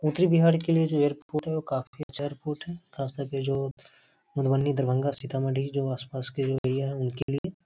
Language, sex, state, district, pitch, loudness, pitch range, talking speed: Hindi, male, Bihar, Darbhanga, 140 Hz, -28 LUFS, 135-155 Hz, 195 wpm